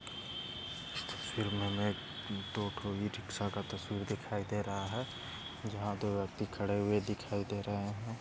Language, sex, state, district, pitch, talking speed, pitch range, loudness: Hindi, male, Maharashtra, Aurangabad, 105 Hz, 130 wpm, 100-105 Hz, -38 LUFS